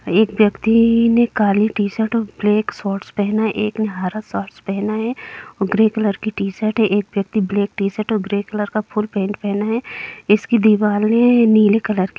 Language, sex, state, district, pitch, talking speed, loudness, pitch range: Hindi, female, Bihar, Gopalganj, 215 Hz, 180 wpm, -18 LUFS, 205-220 Hz